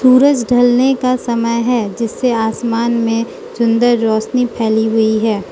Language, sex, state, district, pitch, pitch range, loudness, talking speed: Hindi, female, Manipur, Imphal West, 235 Hz, 225-245 Hz, -14 LUFS, 140 wpm